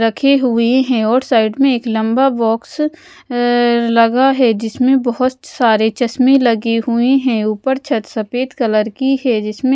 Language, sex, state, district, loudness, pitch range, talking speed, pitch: Hindi, female, Odisha, Malkangiri, -14 LUFS, 230-265 Hz, 160 wpm, 245 Hz